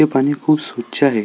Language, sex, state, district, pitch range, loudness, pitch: Marathi, male, Maharashtra, Solapur, 125-150 Hz, -17 LUFS, 140 Hz